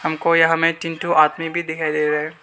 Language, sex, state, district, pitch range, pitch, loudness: Hindi, male, Arunachal Pradesh, Lower Dibang Valley, 155-165 Hz, 160 Hz, -18 LUFS